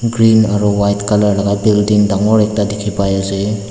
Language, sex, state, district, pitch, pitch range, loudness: Nagamese, male, Nagaland, Dimapur, 105 Hz, 100-105 Hz, -13 LUFS